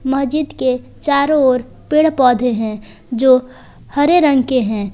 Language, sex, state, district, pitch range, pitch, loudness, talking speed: Hindi, female, Jharkhand, Palamu, 250-285 Hz, 260 Hz, -15 LUFS, 145 wpm